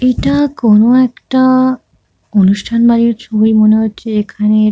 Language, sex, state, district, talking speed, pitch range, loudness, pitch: Bengali, female, West Bengal, Kolkata, 115 wpm, 215-255 Hz, -11 LUFS, 225 Hz